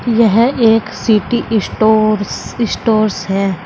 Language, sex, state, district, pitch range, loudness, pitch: Hindi, female, Uttar Pradesh, Saharanpur, 210-230 Hz, -14 LUFS, 220 Hz